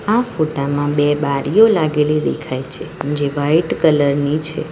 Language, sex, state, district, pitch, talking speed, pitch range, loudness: Gujarati, female, Gujarat, Valsad, 150 Hz, 155 wpm, 145-160 Hz, -17 LUFS